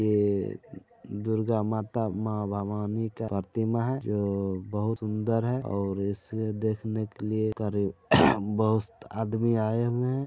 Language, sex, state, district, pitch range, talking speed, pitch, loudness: Hindi, male, Bihar, Saran, 105-110 Hz, 115 wpm, 110 Hz, -28 LUFS